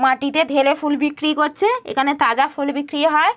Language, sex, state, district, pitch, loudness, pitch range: Bengali, female, West Bengal, Jalpaiguri, 295 Hz, -18 LUFS, 280-310 Hz